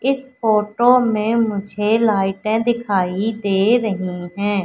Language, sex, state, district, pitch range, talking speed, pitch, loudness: Hindi, female, Madhya Pradesh, Katni, 200-230 Hz, 115 wpm, 215 Hz, -18 LUFS